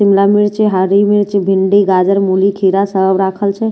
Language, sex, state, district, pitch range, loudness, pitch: Maithili, female, Bihar, Katihar, 190-205 Hz, -12 LUFS, 195 Hz